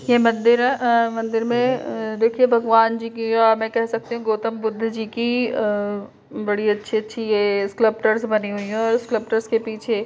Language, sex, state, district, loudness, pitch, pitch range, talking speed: Hindi, female, Uttar Pradesh, Budaun, -20 LUFS, 225 Hz, 220-235 Hz, 190 wpm